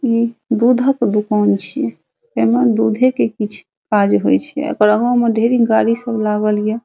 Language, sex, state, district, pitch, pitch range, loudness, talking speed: Maithili, female, Bihar, Saharsa, 220 Hz, 210-235 Hz, -16 LUFS, 165 wpm